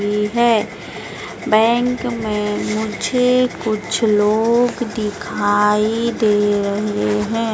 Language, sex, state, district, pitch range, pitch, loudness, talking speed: Hindi, female, Madhya Pradesh, Dhar, 210-235 Hz, 215 Hz, -17 LUFS, 80 wpm